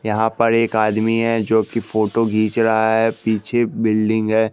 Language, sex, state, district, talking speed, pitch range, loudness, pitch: Hindi, male, Bihar, West Champaran, 185 wpm, 110-115 Hz, -18 LUFS, 110 Hz